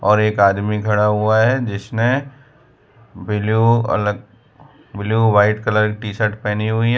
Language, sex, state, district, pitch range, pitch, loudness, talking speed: Hindi, male, Gujarat, Valsad, 105-120 Hz, 110 Hz, -17 LUFS, 155 wpm